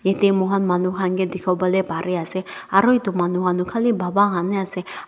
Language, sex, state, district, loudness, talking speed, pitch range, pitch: Nagamese, female, Nagaland, Dimapur, -20 LUFS, 200 wpm, 180-195 Hz, 185 Hz